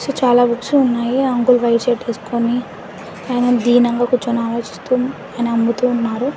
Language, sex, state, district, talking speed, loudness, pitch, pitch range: Telugu, female, Andhra Pradesh, Anantapur, 160 wpm, -17 LUFS, 245 Hz, 235-250 Hz